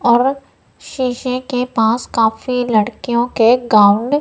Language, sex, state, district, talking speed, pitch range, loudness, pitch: Hindi, female, Punjab, Kapurthala, 130 wpm, 225-255 Hz, -15 LUFS, 245 Hz